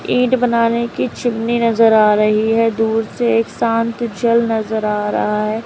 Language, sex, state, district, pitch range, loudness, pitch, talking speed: Hindi, female, Uttar Pradesh, Lalitpur, 220-235 Hz, -16 LUFS, 230 Hz, 180 wpm